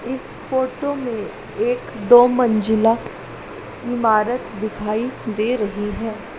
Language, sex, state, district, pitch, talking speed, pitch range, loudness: Hindi, female, Bihar, Madhepura, 230 Hz, 105 wpm, 215-255 Hz, -20 LUFS